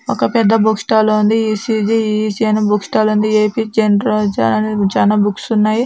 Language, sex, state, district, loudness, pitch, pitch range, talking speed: Telugu, female, Andhra Pradesh, Anantapur, -14 LUFS, 215 Hz, 210-220 Hz, 185 wpm